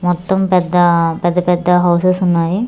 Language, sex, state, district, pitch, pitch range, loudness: Telugu, female, Andhra Pradesh, Manyam, 180 Hz, 175-185 Hz, -14 LUFS